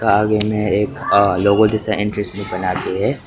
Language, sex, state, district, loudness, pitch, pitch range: Hindi, male, Nagaland, Kohima, -17 LUFS, 105 Hz, 100-105 Hz